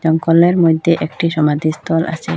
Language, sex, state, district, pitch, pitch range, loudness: Bengali, female, Assam, Hailakandi, 165 Hz, 155-165 Hz, -14 LUFS